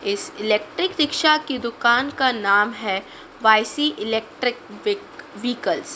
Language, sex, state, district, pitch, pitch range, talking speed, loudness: Hindi, female, Madhya Pradesh, Dhar, 245 Hz, 215-300 Hz, 120 wpm, -21 LUFS